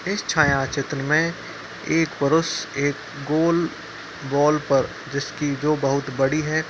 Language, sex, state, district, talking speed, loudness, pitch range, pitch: Hindi, male, Uttar Pradesh, Muzaffarnagar, 135 wpm, -22 LUFS, 140-155 Hz, 150 Hz